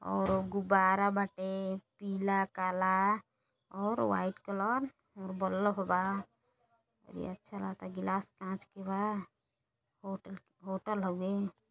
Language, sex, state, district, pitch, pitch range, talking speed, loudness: Hindi, female, Uttar Pradesh, Gorakhpur, 190 Hz, 185-200 Hz, 110 wpm, -34 LUFS